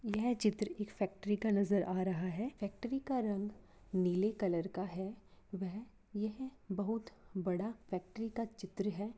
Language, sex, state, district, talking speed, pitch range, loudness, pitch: Hindi, female, Jharkhand, Sahebganj, 155 wpm, 190-220 Hz, -38 LUFS, 205 Hz